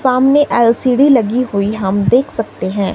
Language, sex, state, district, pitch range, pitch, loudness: Hindi, female, Himachal Pradesh, Shimla, 205-260 Hz, 245 Hz, -13 LUFS